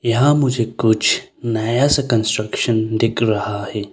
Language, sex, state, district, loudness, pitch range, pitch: Hindi, male, Arunachal Pradesh, Longding, -18 LUFS, 110-120 Hz, 115 Hz